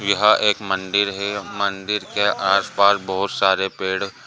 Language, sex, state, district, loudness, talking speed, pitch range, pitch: Hindi, male, Andhra Pradesh, Srikakulam, -19 LUFS, 170 wpm, 95-100 Hz, 100 Hz